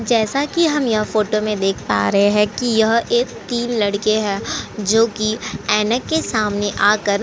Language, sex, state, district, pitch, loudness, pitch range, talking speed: Hindi, female, Uttar Pradesh, Jyotiba Phule Nagar, 215 Hz, -18 LUFS, 205-235 Hz, 190 wpm